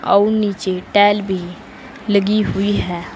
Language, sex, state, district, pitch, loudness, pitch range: Hindi, female, Uttar Pradesh, Saharanpur, 200 Hz, -17 LUFS, 185-205 Hz